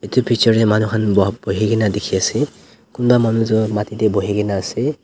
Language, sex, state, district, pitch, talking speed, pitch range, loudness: Nagamese, male, Nagaland, Dimapur, 110 Hz, 200 wpm, 105-115 Hz, -17 LUFS